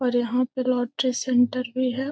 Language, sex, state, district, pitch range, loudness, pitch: Hindi, female, Bihar, Gopalganj, 245-255 Hz, -24 LUFS, 255 Hz